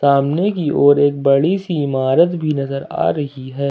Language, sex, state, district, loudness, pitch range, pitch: Hindi, male, Jharkhand, Ranchi, -16 LUFS, 140-160 Hz, 145 Hz